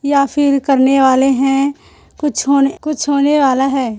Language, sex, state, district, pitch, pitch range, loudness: Hindi, female, Chhattisgarh, Korba, 275 Hz, 270-285 Hz, -14 LUFS